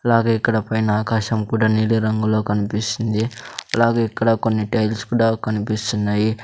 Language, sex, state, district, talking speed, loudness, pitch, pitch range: Telugu, male, Andhra Pradesh, Sri Satya Sai, 130 wpm, -20 LUFS, 110 Hz, 110-115 Hz